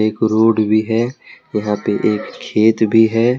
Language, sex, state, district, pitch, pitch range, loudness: Hindi, male, Jharkhand, Deoghar, 110 Hz, 110-115 Hz, -16 LUFS